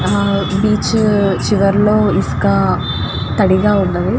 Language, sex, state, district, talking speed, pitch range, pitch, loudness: Telugu, female, Andhra Pradesh, Guntur, 100 wpm, 195-210 Hz, 200 Hz, -14 LUFS